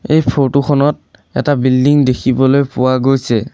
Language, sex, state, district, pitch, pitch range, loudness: Assamese, male, Assam, Sonitpur, 135 Hz, 130-140 Hz, -13 LUFS